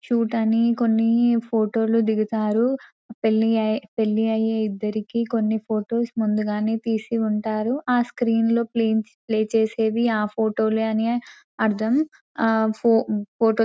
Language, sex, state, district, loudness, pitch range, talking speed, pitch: Telugu, female, Telangana, Nalgonda, -22 LUFS, 220-230 Hz, 115 wpm, 225 Hz